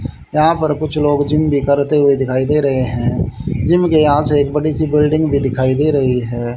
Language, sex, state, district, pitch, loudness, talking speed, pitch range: Hindi, male, Haryana, Jhajjar, 145 Hz, -15 LUFS, 220 wpm, 130-155 Hz